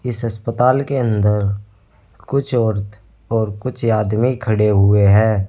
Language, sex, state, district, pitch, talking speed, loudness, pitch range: Hindi, male, Uttar Pradesh, Saharanpur, 110 Hz, 130 wpm, -17 LUFS, 100-120 Hz